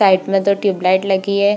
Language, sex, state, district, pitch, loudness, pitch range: Hindi, female, Bihar, Purnia, 195 Hz, -16 LUFS, 190-200 Hz